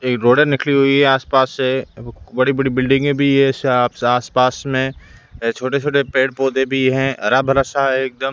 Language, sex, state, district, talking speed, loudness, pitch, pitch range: Hindi, male, Rajasthan, Bikaner, 175 wpm, -16 LUFS, 130 Hz, 130-135 Hz